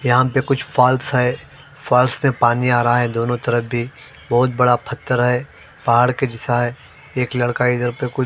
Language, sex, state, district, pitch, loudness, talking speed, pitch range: Hindi, male, Maharashtra, Mumbai Suburban, 125 Hz, -18 LUFS, 190 wpm, 120-130 Hz